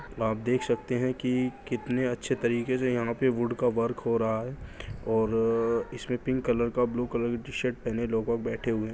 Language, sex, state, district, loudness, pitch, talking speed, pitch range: Hindi, male, Bihar, Jahanabad, -29 LUFS, 120 Hz, 200 wpm, 115-125 Hz